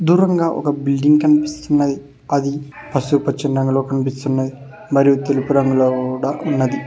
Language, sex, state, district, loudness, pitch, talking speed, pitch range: Telugu, male, Telangana, Hyderabad, -17 LUFS, 140 Hz, 120 wpm, 135-150 Hz